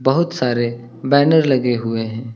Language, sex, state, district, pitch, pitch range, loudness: Hindi, male, Uttar Pradesh, Lucknow, 125 Hz, 115-140 Hz, -17 LUFS